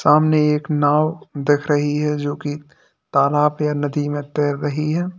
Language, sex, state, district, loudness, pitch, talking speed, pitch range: Hindi, male, Uttar Pradesh, Lalitpur, -19 LUFS, 150 Hz, 175 wpm, 145-150 Hz